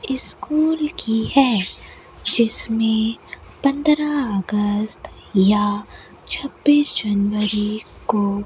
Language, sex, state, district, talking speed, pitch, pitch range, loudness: Hindi, female, Rajasthan, Bikaner, 80 wpm, 220 Hz, 210-275 Hz, -19 LUFS